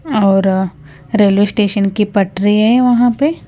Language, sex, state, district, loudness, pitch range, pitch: Hindi, female, Punjab, Kapurthala, -13 LUFS, 195-230 Hz, 205 Hz